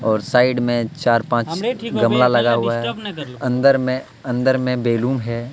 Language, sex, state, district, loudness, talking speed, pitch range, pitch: Hindi, male, Jharkhand, Deoghar, -19 LUFS, 150 wpm, 115-130 Hz, 125 Hz